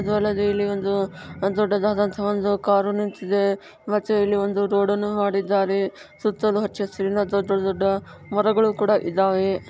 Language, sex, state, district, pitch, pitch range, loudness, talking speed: Kannada, female, Karnataka, Dharwad, 200 Hz, 195-205 Hz, -22 LUFS, 135 wpm